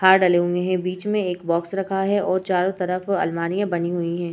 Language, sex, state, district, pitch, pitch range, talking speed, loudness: Hindi, female, Bihar, Vaishali, 185 Hz, 175-195 Hz, 235 wpm, -22 LUFS